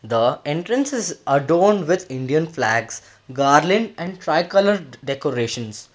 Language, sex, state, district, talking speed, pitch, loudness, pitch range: English, male, Karnataka, Bangalore, 120 wpm, 150 Hz, -20 LUFS, 125-185 Hz